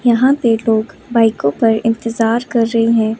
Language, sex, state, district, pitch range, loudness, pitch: Hindi, female, Chandigarh, Chandigarh, 225-235 Hz, -15 LUFS, 230 Hz